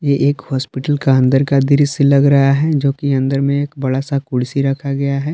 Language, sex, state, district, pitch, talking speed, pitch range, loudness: Hindi, male, Jharkhand, Palamu, 140 Hz, 225 wpm, 135-140 Hz, -15 LUFS